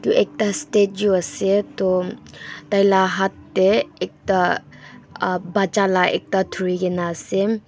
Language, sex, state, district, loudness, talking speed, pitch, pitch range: Nagamese, female, Nagaland, Dimapur, -20 LUFS, 115 wpm, 190 Hz, 185-200 Hz